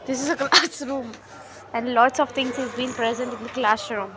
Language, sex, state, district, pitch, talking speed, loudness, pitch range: English, female, Haryana, Rohtak, 250 Hz, 215 wpm, -22 LUFS, 230-270 Hz